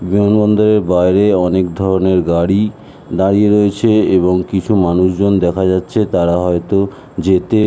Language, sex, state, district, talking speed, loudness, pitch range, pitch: Bengali, male, West Bengal, North 24 Parganas, 125 wpm, -13 LUFS, 90-105 Hz, 95 Hz